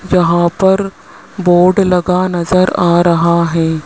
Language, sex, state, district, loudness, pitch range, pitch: Hindi, male, Rajasthan, Jaipur, -12 LUFS, 170-185 Hz, 175 Hz